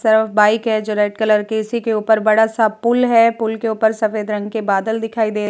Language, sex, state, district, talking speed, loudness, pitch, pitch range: Hindi, female, Bihar, Vaishali, 250 wpm, -16 LUFS, 220 Hz, 215-225 Hz